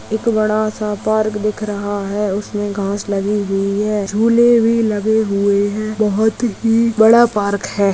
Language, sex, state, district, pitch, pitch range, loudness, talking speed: Hindi, female, Maharashtra, Aurangabad, 210 Hz, 205-220 Hz, -16 LUFS, 165 wpm